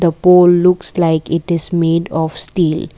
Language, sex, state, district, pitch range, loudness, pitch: English, female, Assam, Kamrup Metropolitan, 165-180 Hz, -13 LUFS, 170 Hz